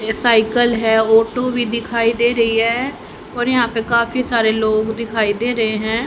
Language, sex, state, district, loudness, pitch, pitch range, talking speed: Hindi, female, Haryana, Charkhi Dadri, -16 LUFS, 230 Hz, 220-240 Hz, 190 wpm